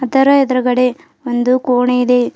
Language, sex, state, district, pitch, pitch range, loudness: Kannada, female, Karnataka, Bidar, 250 Hz, 250-265 Hz, -14 LUFS